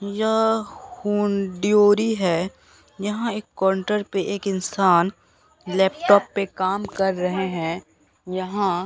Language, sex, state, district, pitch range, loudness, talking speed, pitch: Hindi, female, Bihar, Katihar, 185-205 Hz, -22 LUFS, 115 wpm, 195 Hz